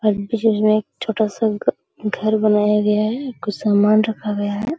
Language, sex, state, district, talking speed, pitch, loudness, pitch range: Hindi, female, Bihar, Araria, 150 wpm, 215 Hz, -19 LUFS, 210-220 Hz